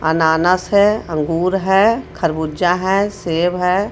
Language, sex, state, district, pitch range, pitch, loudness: Hindi, female, Jharkhand, Ranchi, 165-195 Hz, 180 Hz, -16 LUFS